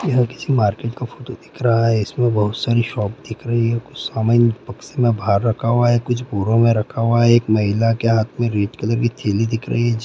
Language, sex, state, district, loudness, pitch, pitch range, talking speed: Hindi, male, Bihar, Gopalganj, -18 LUFS, 115 Hz, 110-120 Hz, 250 wpm